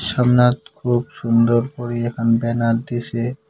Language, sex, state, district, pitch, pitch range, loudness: Bengali, male, West Bengal, Cooch Behar, 120 Hz, 115-125 Hz, -19 LUFS